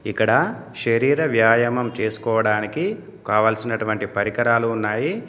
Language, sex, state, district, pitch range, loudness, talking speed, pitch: Telugu, male, Telangana, Komaram Bheem, 110-120 Hz, -20 LUFS, 80 wpm, 115 Hz